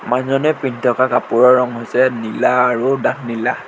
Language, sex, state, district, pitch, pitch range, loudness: Assamese, male, Assam, Sonitpur, 125 Hz, 120-130 Hz, -16 LUFS